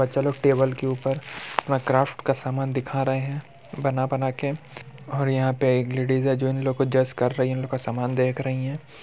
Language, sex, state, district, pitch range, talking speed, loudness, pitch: Hindi, male, Bihar, Muzaffarpur, 130-135 Hz, 230 wpm, -24 LUFS, 135 Hz